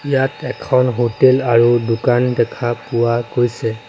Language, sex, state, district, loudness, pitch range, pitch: Assamese, male, Assam, Sonitpur, -16 LUFS, 120-125 Hz, 120 Hz